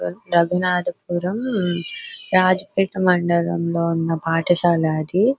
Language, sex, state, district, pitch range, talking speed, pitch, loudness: Telugu, female, Telangana, Nalgonda, 170-185 Hz, 100 wpm, 175 Hz, -19 LUFS